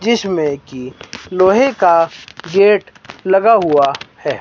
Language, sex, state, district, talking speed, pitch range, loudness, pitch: Hindi, male, Himachal Pradesh, Shimla, 125 wpm, 145-205 Hz, -13 LUFS, 185 Hz